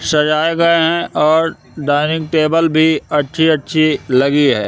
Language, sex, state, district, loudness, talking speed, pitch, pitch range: Hindi, male, Madhya Pradesh, Katni, -14 LUFS, 130 wpm, 155 Hz, 145-160 Hz